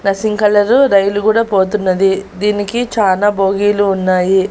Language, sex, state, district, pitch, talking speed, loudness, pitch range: Telugu, female, Andhra Pradesh, Annamaya, 200 Hz, 120 wpm, -13 LUFS, 195-210 Hz